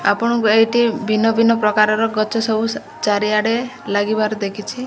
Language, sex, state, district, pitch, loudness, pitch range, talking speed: Odia, female, Odisha, Malkangiri, 220 Hz, -17 LUFS, 215-230 Hz, 110 wpm